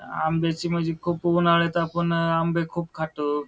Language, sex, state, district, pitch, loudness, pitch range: Marathi, male, Maharashtra, Pune, 165 Hz, -24 LUFS, 165-170 Hz